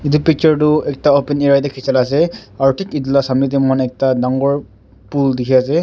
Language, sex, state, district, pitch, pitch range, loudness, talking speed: Nagamese, male, Nagaland, Dimapur, 140 Hz, 130-145 Hz, -15 LUFS, 215 wpm